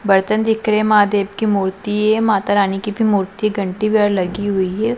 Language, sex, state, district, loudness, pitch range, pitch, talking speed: Hindi, female, Punjab, Pathankot, -17 LUFS, 195-215 Hz, 205 Hz, 205 wpm